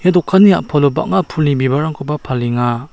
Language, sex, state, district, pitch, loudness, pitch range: Garo, male, Meghalaya, South Garo Hills, 150 Hz, -14 LUFS, 130-180 Hz